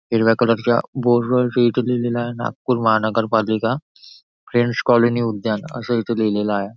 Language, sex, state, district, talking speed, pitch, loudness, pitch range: Marathi, male, Maharashtra, Nagpur, 160 wpm, 120 Hz, -19 LUFS, 110-120 Hz